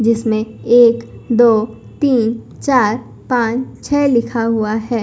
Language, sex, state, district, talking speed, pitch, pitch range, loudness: Hindi, female, Punjab, Kapurthala, 120 wpm, 235 Hz, 225-245 Hz, -15 LUFS